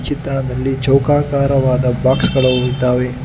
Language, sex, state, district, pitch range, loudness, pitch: Kannada, male, Karnataka, Bangalore, 125-140 Hz, -15 LUFS, 130 Hz